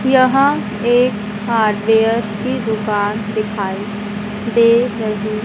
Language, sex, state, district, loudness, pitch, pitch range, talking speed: Hindi, female, Madhya Pradesh, Dhar, -16 LUFS, 215 Hz, 210-235 Hz, 90 wpm